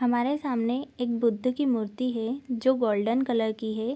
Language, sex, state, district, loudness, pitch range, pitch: Hindi, female, Bihar, East Champaran, -27 LUFS, 230-255 Hz, 240 Hz